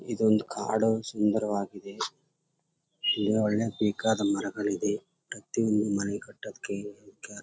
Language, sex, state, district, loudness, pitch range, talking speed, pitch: Kannada, male, Karnataka, Chamarajanagar, -29 LUFS, 105-115 Hz, 115 wpm, 105 Hz